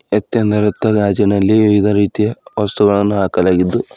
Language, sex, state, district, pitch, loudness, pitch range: Kannada, male, Karnataka, Bidar, 105 Hz, -14 LUFS, 100-105 Hz